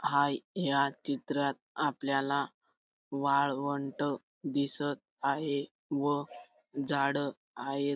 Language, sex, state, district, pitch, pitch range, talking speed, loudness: Marathi, male, Maharashtra, Dhule, 140 Hz, 140-145 Hz, 75 wpm, -33 LUFS